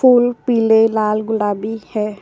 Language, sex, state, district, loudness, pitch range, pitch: Hindi, female, Uttar Pradesh, Jyotiba Phule Nagar, -16 LUFS, 210-230 Hz, 220 Hz